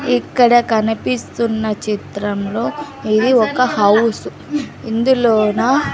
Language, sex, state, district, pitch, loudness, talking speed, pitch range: Telugu, female, Andhra Pradesh, Sri Satya Sai, 225 Hz, -16 LUFS, 70 wpm, 210-240 Hz